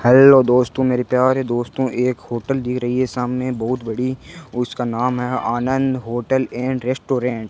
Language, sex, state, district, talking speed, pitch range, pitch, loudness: Hindi, male, Rajasthan, Bikaner, 175 wpm, 125-130 Hz, 125 Hz, -19 LUFS